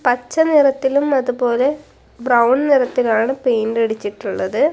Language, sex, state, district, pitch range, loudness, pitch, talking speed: Malayalam, female, Kerala, Kasaragod, 235-275 Hz, -17 LUFS, 250 Hz, 90 wpm